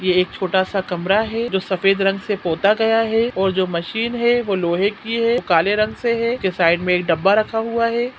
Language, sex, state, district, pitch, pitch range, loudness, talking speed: Hindi, female, Chhattisgarh, Sukma, 200 Hz, 185-225 Hz, -19 LUFS, 240 wpm